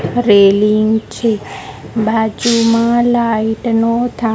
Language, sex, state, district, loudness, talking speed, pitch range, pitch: Gujarati, female, Gujarat, Gandhinagar, -13 LUFS, 85 wpm, 220-235 Hz, 225 Hz